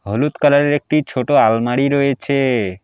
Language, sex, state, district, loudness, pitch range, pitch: Bengali, male, West Bengal, Alipurduar, -16 LUFS, 120-145 Hz, 140 Hz